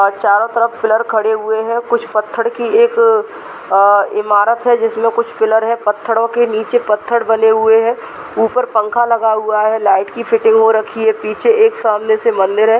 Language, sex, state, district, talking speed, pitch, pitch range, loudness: Hindi, female, Rajasthan, Churu, 200 wpm, 225 Hz, 215-235 Hz, -13 LUFS